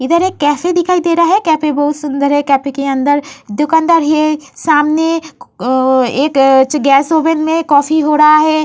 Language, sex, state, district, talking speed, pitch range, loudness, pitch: Hindi, female, Uttar Pradesh, Varanasi, 175 wpm, 280-320 Hz, -12 LUFS, 300 Hz